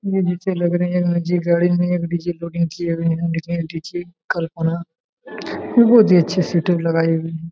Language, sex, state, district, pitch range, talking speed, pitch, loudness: Hindi, male, Jharkhand, Jamtara, 165-180 Hz, 135 wpm, 170 Hz, -19 LUFS